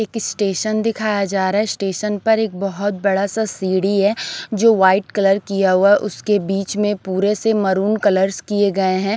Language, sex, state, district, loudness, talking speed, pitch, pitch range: Hindi, female, Maharashtra, Gondia, -18 LUFS, 190 wpm, 200 Hz, 195-210 Hz